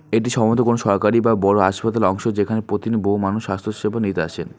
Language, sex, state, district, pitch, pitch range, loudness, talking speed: Bengali, male, West Bengal, Alipurduar, 110 Hz, 100-115 Hz, -19 LUFS, 195 wpm